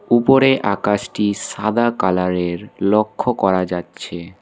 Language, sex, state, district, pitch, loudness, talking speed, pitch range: Bengali, male, West Bengal, Alipurduar, 105 Hz, -18 LUFS, 95 wpm, 90-120 Hz